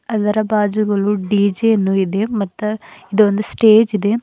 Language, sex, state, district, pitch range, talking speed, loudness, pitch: Kannada, female, Karnataka, Bidar, 200-215 Hz, 140 wpm, -16 LUFS, 210 Hz